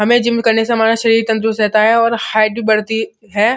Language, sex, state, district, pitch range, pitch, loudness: Hindi, male, Uttar Pradesh, Muzaffarnagar, 215-230 Hz, 225 Hz, -14 LUFS